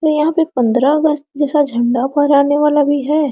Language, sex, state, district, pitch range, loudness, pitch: Hindi, female, Jharkhand, Sahebganj, 280-300 Hz, -14 LUFS, 290 Hz